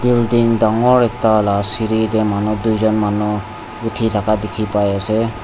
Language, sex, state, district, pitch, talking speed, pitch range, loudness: Nagamese, male, Nagaland, Dimapur, 110 Hz, 110 wpm, 105-115 Hz, -16 LUFS